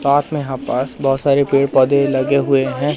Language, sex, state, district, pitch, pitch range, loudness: Hindi, male, Madhya Pradesh, Katni, 140 Hz, 135-140 Hz, -16 LUFS